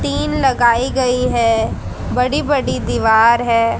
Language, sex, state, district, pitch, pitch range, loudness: Hindi, female, Haryana, Charkhi Dadri, 240 Hz, 230-255 Hz, -15 LUFS